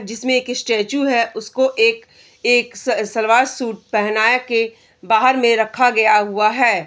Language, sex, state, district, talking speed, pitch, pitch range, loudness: Hindi, female, Bihar, Araria, 140 wpm, 230 Hz, 220-250 Hz, -16 LUFS